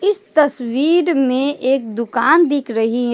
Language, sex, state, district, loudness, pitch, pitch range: Hindi, female, West Bengal, Alipurduar, -16 LUFS, 270 Hz, 240-315 Hz